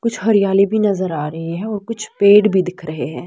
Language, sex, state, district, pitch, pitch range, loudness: Hindi, female, Bihar, West Champaran, 195 Hz, 170-210 Hz, -16 LUFS